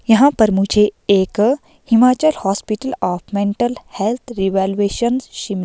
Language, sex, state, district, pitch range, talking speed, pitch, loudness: Hindi, female, Himachal Pradesh, Shimla, 195-250 Hz, 115 wpm, 215 Hz, -17 LUFS